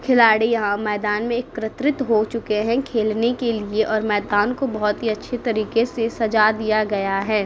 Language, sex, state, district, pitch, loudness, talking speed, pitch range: Hindi, female, Uttar Pradesh, Muzaffarnagar, 220 Hz, -20 LUFS, 185 wpm, 210-235 Hz